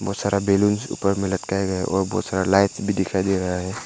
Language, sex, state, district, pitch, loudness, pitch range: Hindi, male, Arunachal Pradesh, Papum Pare, 95 Hz, -22 LUFS, 95-100 Hz